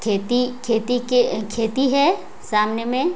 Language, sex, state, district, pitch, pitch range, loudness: Hindi, female, Jharkhand, Sahebganj, 245 Hz, 225-250 Hz, -20 LUFS